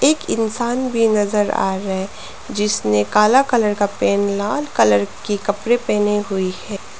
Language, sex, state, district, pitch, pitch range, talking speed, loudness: Hindi, female, Arunachal Pradesh, Lower Dibang Valley, 210 Hz, 200-230 Hz, 155 wpm, -18 LUFS